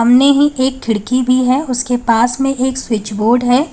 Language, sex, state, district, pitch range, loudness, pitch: Hindi, female, Uttar Pradesh, Lalitpur, 235-260 Hz, -14 LUFS, 255 Hz